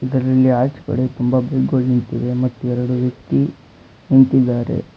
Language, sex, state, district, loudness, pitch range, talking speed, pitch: Kannada, male, Karnataka, Bangalore, -17 LUFS, 125-130 Hz, 110 wpm, 125 Hz